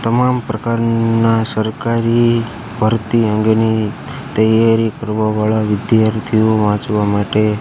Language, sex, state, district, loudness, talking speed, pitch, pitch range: Gujarati, male, Gujarat, Gandhinagar, -15 LUFS, 85 wpm, 110 Hz, 110-115 Hz